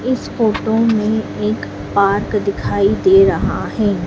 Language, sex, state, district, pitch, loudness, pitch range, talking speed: Hindi, female, Madhya Pradesh, Dhar, 200 Hz, -16 LUFS, 190-220 Hz, 135 wpm